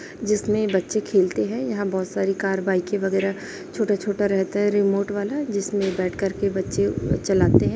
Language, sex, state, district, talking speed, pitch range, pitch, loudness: Hindi, female, Chhattisgarh, Raipur, 170 wpm, 190-205 Hz, 200 Hz, -23 LUFS